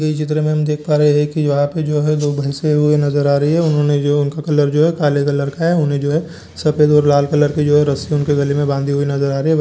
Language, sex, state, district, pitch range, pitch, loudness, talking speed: Hindi, male, Jharkhand, Jamtara, 145-150 Hz, 150 Hz, -15 LUFS, 300 wpm